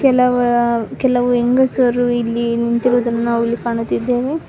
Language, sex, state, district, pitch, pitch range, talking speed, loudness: Kannada, female, Karnataka, Bangalore, 245 Hz, 235-250 Hz, 105 wpm, -16 LUFS